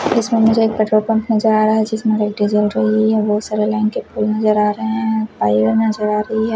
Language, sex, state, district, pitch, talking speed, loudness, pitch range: Hindi, female, Chhattisgarh, Raipur, 215 Hz, 245 wpm, -16 LUFS, 210-220 Hz